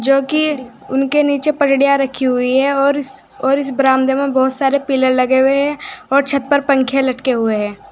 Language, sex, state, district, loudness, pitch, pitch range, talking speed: Hindi, female, Uttar Pradesh, Saharanpur, -15 LUFS, 270 Hz, 260-280 Hz, 195 wpm